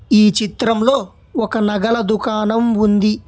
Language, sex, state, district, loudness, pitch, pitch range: Telugu, male, Telangana, Hyderabad, -16 LUFS, 220 Hz, 210-230 Hz